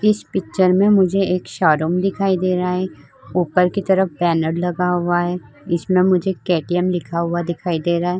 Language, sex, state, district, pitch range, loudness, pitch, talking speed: Hindi, female, Uttar Pradesh, Budaun, 170-185 Hz, -18 LUFS, 180 Hz, 190 wpm